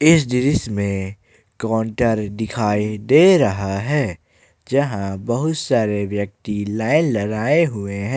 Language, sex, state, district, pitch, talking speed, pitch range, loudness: Hindi, male, Jharkhand, Ranchi, 110 Hz, 120 wpm, 100-135 Hz, -19 LUFS